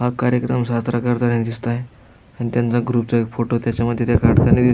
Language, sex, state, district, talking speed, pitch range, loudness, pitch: Marathi, male, Maharashtra, Aurangabad, 165 wpm, 115-120 Hz, -19 LUFS, 120 Hz